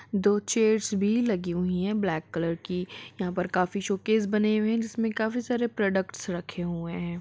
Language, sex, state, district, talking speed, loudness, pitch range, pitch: Hindi, female, Bihar, Gopalganj, 190 wpm, -27 LUFS, 180-220 Hz, 200 Hz